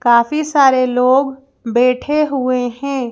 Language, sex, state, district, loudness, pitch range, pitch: Hindi, female, Madhya Pradesh, Bhopal, -15 LUFS, 250-275 Hz, 260 Hz